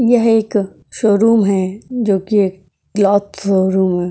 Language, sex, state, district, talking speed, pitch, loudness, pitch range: Hindi, female, Uttar Pradesh, Etah, 130 wpm, 200 Hz, -15 LUFS, 190-220 Hz